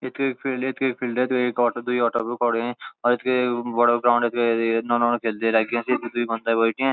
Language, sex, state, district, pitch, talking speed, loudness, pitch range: Garhwali, male, Uttarakhand, Uttarkashi, 120 Hz, 175 wpm, -22 LUFS, 120-125 Hz